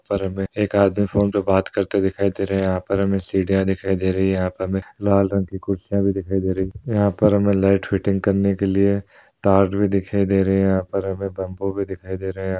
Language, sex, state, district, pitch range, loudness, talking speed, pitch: Hindi, male, Uttar Pradesh, Hamirpur, 95-100 Hz, -20 LUFS, 265 wpm, 95 Hz